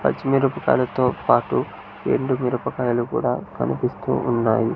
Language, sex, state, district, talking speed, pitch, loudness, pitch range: Telugu, male, Andhra Pradesh, Sri Satya Sai, 100 wpm, 125 Hz, -22 LUFS, 120-130 Hz